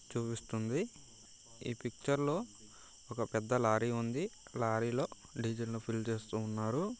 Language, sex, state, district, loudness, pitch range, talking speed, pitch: Telugu, male, Andhra Pradesh, Guntur, -37 LUFS, 110-125 Hz, 130 wpm, 115 Hz